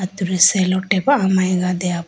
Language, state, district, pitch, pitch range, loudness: Idu Mishmi, Arunachal Pradesh, Lower Dibang Valley, 185 Hz, 180-190 Hz, -16 LUFS